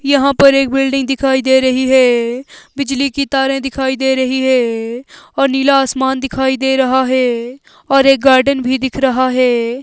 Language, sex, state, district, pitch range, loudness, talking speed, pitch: Hindi, female, Himachal Pradesh, Shimla, 260-270 Hz, -13 LUFS, 175 wpm, 265 Hz